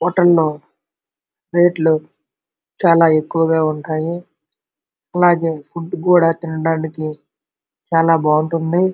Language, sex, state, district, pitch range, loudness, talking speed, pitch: Telugu, male, Andhra Pradesh, Srikakulam, 155-175 Hz, -16 LUFS, 65 wpm, 165 Hz